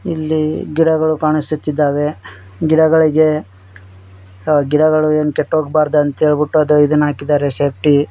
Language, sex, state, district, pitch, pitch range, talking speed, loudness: Kannada, male, Karnataka, Koppal, 150 Hz, 145-155 Hz, 110 wpm, -14 LUFS